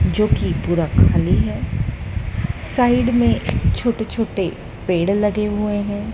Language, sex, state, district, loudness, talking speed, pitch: Hindi, female, Madhya Pradesh, Dhar, -19 LUFS, 125 wpm, 185 Hz